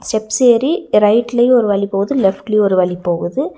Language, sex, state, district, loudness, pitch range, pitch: Tamil, female, Tamil Nadu, Nilgiris, -14 LUFS, 195-250 Hz, 215 Hz